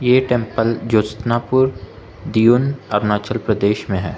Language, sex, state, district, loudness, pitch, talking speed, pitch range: Hindi, male, Arunachal Pradesh, Lower Dibang Valley, -18 LUFS, 115 Hz, 130 wpm, 105-125 Hz